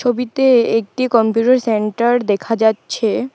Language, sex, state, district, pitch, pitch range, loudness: Bengali, female, West Bengal, Alipurduar, 235 Hz, 220-250 Hz, -15 LUFS